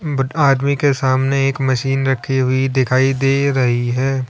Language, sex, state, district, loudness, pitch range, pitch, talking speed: Hindi, male, Uttar Pradesh, Lalitpur, -16 LUFS, 130-135 Hz, 135 Hz, 165 wpm